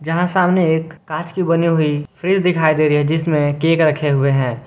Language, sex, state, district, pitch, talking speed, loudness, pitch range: Hindi, male, Jharkhand, Garhwa, 160 Hz, 220 wpm, -16 LUFS, 150-170 Hz